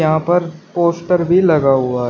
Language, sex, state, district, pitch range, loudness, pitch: Hindi, male, Uttar Pradesh, Shamli, 155-175 Hz, -15 LUFS, 170 Hz